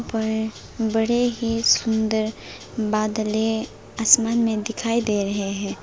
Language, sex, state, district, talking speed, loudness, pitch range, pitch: Hindi, female, West Bengal, Alipurduar, 115 wpm, -22 LUFS, 215-230 Hz, 220 Hz